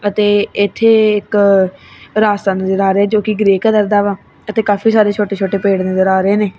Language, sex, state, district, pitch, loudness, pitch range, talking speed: Punjabi, female, Punjab, Kapurthala, 205 Hz, -13 LUFS, 195-210 Hz, 210 wpm